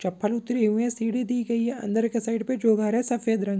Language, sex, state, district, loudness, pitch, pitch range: Hindi, female, Bihar, Samastipur, -25 LUFS, 230 Hz, 215-240 Hz